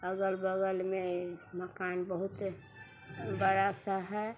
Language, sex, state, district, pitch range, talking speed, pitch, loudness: Hindi, female, Bihar, Sitamarhi, 180-195 Hz, 110 wpm, 185 Hz, -35 LUFS